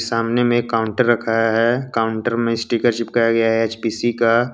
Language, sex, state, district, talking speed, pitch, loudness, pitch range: Hindi, male, Jharkhand, Deoghar, 185 wpm, 115 Hz, -18 LUFS, 115-120 Hz